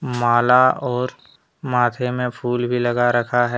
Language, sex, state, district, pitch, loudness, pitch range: Hindi, male, Jharkhand, Deoghar, 125 Hz, -19 LUFS, 120-125 Hz